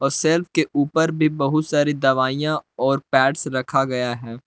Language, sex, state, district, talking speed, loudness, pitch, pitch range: Hindi, male, Jharkhand, Palamu, 160 wpm, -20 LUFS, 140 Hz, 130-155 Hz